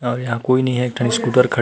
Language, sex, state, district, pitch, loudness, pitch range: Chhattisgarhi, male, Chhattisgarh, Rajnandgaon, 125 Hz, -18 LUFS, 120-125 Hz